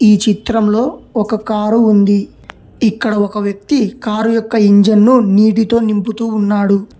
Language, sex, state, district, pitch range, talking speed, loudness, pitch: Telugu, male, Telangana, Hyderabad, 205-225 Hz, 120 wpm, -13 LUFS, 215 Hz